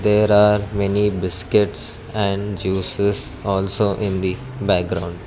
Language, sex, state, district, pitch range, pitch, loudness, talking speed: English, male, Karnataka, Bangalore, 95-105 Hz, 100 Hz, -19 LUFS, 115 wpm